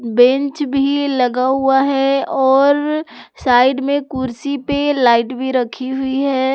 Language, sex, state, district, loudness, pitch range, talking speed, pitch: Hindi, female, Jharkhand, Palamu, -16 LUFS, 255-280 Hz, 135 wpm, 270 Hz